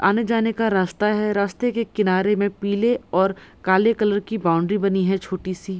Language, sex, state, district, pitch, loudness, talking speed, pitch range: Hindi, female, Bihar, Madhepura, 200 Hz, -21 LUFS, 175 wpm, 190-215 Hz